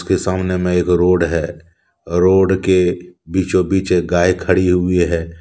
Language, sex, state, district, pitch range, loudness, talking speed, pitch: Hindi, male, Jharkhand, Deoghar, 85-95 Hz, -16 LUFS, 175 wpm, 90 Hz